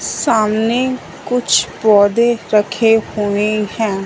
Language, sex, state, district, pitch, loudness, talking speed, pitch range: Hindi, male, Punjab, Fazilka, 215 Hz, -15 LUFS, 90 wpm, 205-230 Hz